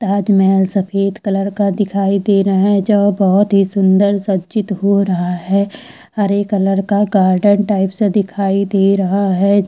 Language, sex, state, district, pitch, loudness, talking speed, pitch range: Hindi, female, Chhattisgarh, Bilaspur, 200 Hz, -14 LUFS, 165 wpm, 195-205 Hz